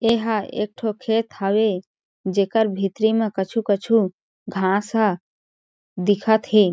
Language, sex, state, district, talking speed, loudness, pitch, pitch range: Chhattisgarhi, female, Chhattisgarh, Jashpur, 115 wpm, -21 LUFS, 210 Hz, 195-220 Hz